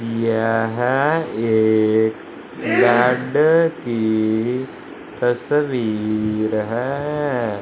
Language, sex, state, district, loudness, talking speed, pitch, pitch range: Hindi, male, Punjab, Fazilka, -19 LUFS, 45 wpm, 115 Hz, 110-135 Hz